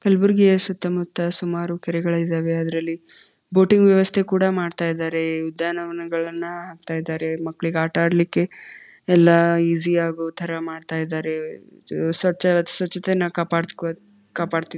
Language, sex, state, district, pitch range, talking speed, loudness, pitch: Kannada, female, Karnataka, Gulbarga, 165-180 Hz, 110 wpm, -21 LUFS, 170 Hz